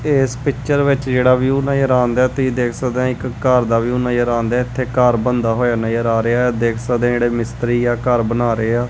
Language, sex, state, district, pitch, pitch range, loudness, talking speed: Punjabi, male, Punjab, Kapurthala, 125 Hz, 120-130 Hz, -17 LUFS, 245 wpm